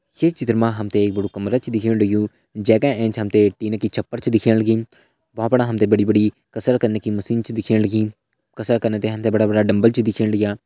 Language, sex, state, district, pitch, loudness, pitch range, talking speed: Hindi, male, Uttarakhand, Uttarkashi, 110 Hz, -19 LUFS, 105-115 Hz, 260 wpm